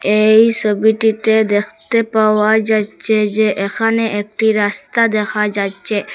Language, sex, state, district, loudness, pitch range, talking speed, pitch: Bengali, female, Assam, Hailakandi, -15 LUFS, 210-220 Hz, 105 wpm, 215 Hz